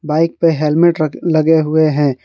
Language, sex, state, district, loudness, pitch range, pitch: Hindi, male, Jharkhand, Garhwa, -14 LUFS, 150-165 Hz, 155 Hz